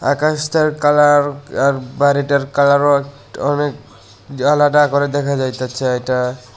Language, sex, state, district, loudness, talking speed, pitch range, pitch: Bengali, male, Tripura, West Tripura, -16 LUFS, 100 wpm, 130-145 Hz, 140 Hz